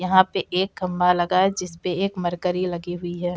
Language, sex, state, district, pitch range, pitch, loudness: Hindi, female, Uttar Pradesh, Jalaun, 175-185 Hz, 180 Hz, -23 LUFS